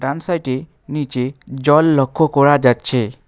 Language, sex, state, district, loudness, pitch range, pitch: Bengali, male, West Bengal, Alipurduar, -16 LUFS, 130-150 Hz, 140 Hz